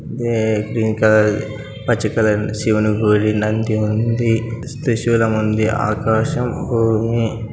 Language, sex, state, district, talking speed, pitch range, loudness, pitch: Telugu, male, Andhra Pradesh, Anantapur, 110 wpm, 110-115 Hz, -17 LUFS, 110 Hz